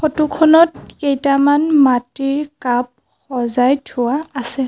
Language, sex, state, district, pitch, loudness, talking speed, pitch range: Assamese, female, Assam, Sonitpur, 275 Hz, -16 LUFS, 100 wpm, 250-295 Hz